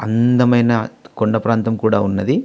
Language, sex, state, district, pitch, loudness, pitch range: Telugu, male, Andhra Pradesh, Visakhapatnam, 115 Hz, -16 LUFS, 110-120 Hz